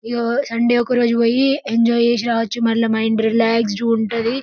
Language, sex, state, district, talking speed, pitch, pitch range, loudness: Telugu, female, Telangana, Karimnagar, 150 wpm, 230 Hz, 230-235 Hz, -17 LUFS